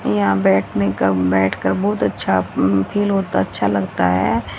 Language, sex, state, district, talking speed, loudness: Hindi, female, Haryana, Rohtak, 145 wpm, -18 LUFS